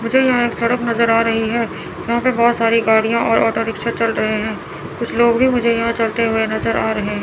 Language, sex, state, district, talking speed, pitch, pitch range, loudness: Hindi, female, Chandigarh, Chandigarh, 240 wpm, 230 Hz, 220-235 Hz, -17 LUFS